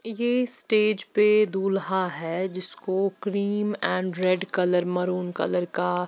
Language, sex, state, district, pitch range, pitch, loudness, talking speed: Hindi, female, Bihar, Patna, 180-210 Hz, 190 Hz, -21 LUFS, 130 wpm